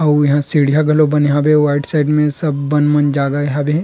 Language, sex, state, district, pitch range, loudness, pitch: Chhattisgarhi, male, Chhattisgarh, Rajnandgaon, 145-150 Hz, -14 LUFS, 150 Hz